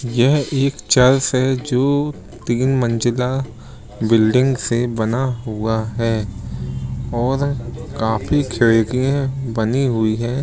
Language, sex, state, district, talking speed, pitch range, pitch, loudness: Hindi, male, Bihar, Lakhisarai, 105 wpm, 115-130 Hz, 120 Hz, -18 LUFS